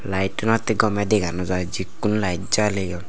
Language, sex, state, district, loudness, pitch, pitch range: Chakma, male, Tripura, Unakoti, -22 LUFS, 95 Hz, 90-105 Hz